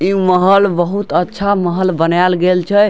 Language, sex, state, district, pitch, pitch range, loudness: Maithili, male, Bihar, Darbhanga, 185 Hz, 180-200 Hz, -13 LUFS